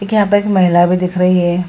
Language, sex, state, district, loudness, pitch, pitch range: Hindi, female, Bihar, Purnia, -13 LUFS, 180 Hz, 180-200 Hz